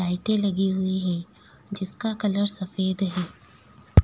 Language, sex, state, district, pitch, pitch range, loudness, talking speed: Hindi, female, Goa, North and South Goa, 190 Hz, 180-200 Hz, -26 LUFS, 120 wpm